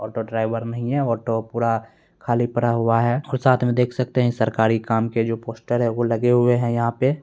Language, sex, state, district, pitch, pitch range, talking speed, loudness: Hindi, male, Bihar, Begusarai, 120 Hz, 115-120 Hz, 240 wpm, -21 LUFS